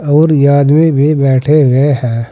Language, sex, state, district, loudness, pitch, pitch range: Hindi, male, Uttar Pradesh, Saharanpur, -10 LUFS, 140 Hz, 135-150 Hz